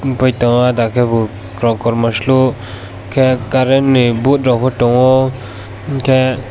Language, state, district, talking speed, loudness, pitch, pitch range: Kokborok, Tripura, West Tripura, 110 wpm, -13 LUFS, 125 Hz, 115-130 Hz